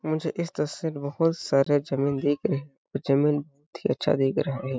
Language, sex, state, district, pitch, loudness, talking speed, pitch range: Hindi, male, Chhattisgarh, Balrampur, 145 Hz, -26 LUFS, 190 wpm, 140-155 Hz